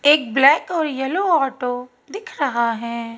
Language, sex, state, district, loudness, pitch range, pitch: Hindi, female, Madhya Pradesh, Bhopal, -19 LUFS, 245-310 Hz, 275 Hz